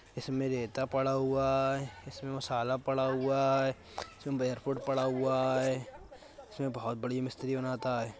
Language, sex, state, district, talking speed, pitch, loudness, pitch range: Hindi, male, Uttar Pradesh, Budaun, 145 wpm, 130 Hz, -33 LUFS, 130-135 Hz